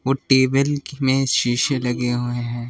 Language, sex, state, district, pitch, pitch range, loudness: Hindi, male, Delhi, New Delhi, 130 Hz, 120-135 Hz, -20 LUFS